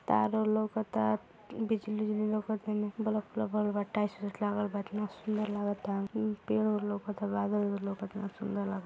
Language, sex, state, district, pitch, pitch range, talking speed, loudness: Hindi, female, Uttar Pradesh, Gorakhpur, 210 Hz, 200-215 Hz, 195 wpm, -33 LUFS